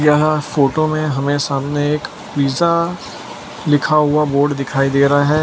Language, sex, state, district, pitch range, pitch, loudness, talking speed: Hindi, male, Gujarat, Valsad, 140-155 Hz, 150 Hz, -16 LUFS, 155 wpm